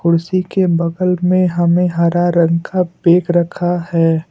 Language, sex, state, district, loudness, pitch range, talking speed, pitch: Hindi, male, Assam, Kamrup Metropolitan, -15 LUFS, 170-180 Hz, 155 wpm, 175 Hz